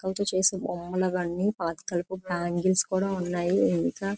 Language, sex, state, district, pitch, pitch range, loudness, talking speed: Telugu, female, Andhra Pradesh, Chittoor, 185 Hz, 175-190 Hz, -27 LUFS, 130 wpm